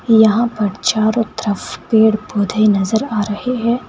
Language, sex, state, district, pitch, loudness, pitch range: Hindi, female, Uttar Pradesh, Saharanpur, 215 Hz, -16 LUFS, 210-225 Hz